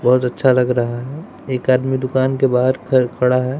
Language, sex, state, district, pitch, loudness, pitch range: Hindi, male, Bihar, West Champaran, 130 Hz, -17 LUFS, 125-130 Hz